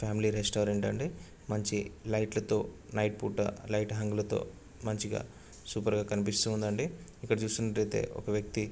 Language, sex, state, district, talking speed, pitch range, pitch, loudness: Telugu, male, Andhra Pradesh, Anantapur, 125 wpm, 105-110 Hz, 105 Hz, -33 LUFS